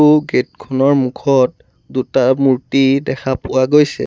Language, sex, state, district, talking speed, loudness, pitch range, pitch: Assamese, male, Assam, Sonitpur, 135 wpm, -15 LUFS, 130-140 Hz, 130 Hz